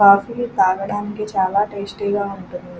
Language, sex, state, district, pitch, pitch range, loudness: Telugu, female, Andhra Pradesh, Krishna, 200 Hz, 190-205 Hz, -20 LUFS